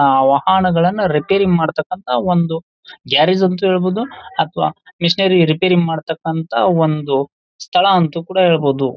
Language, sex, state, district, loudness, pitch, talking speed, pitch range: Kannada, male, Karnataka, Bijapur, -15 LUFS, 170 Hz, 115 wpm, 155-185 Hz